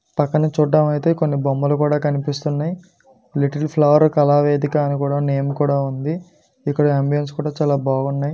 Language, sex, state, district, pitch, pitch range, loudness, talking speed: Telugu, male, Andhra Pradesh, Guntur, 145 Hz, 140-150 Hz, -19 LUFS, 145 wpm